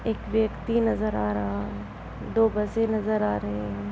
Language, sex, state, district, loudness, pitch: Hindi, female, Bihar, Darbhanga, -26 LUFS, 210 Hz